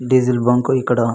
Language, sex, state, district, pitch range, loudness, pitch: Telugu, male, Andhra Pradesh, Anantapur, 120-130 Hz, -16 LUFS, 125 Hz